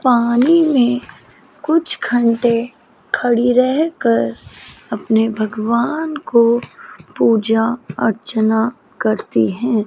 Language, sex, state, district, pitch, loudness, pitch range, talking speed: Hindi, female, Chandigarh, Chandigarh, 235 Hz, -16 LUFS, 220-250 Hz, 80 wpm